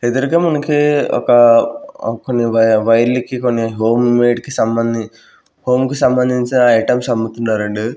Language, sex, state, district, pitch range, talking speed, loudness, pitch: Telugu, male, Andhra Pradesh, Sri Satya Sai, 115-125 Hz, 120 wpm, -14 LUFS, 120 Hz